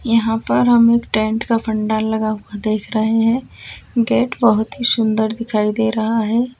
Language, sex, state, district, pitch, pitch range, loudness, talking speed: Hindi, female, Uttar Pradesh, Jyotiba Phule Nagar, 225 Hz, 220-235 Hz, -17 LUFS, 200 wpm